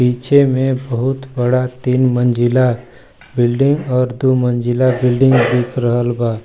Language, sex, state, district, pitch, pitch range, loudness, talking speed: Hindi, male, Chhattisgarh, Balrampur, 125 Hz, 120-130 Hz, -15 LUFS, 130 wpm